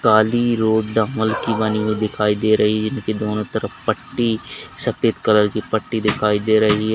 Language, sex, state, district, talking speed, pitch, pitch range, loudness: Hindi, male, Uttar Pradesh, Lalitpur, 190 wpm, 110 Hz, 105-110 Hz, -19 LUFS